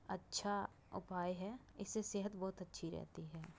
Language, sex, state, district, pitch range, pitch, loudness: Hindi, female, Uttar Pradesh, Budaun, 175-200 Hz, 190 Hz, -45 LUFS